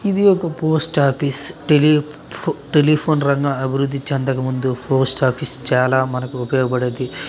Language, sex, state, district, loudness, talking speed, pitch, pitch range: Telugu, male, Andhra Pradesh, Chittoor, -18 LUFS, 125 wpm, 140 Hz, 130-150 Hz